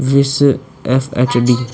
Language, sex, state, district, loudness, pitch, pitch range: Hindi, male, Uttar Pradesh, Budaun, -15 LUFS, 130 Hz, 125-140 Hz